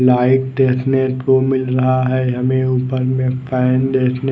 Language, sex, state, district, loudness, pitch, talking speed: Hindi, male, Odisha, Nuapada, -16 LUFS, 130 Hz, 165 wpm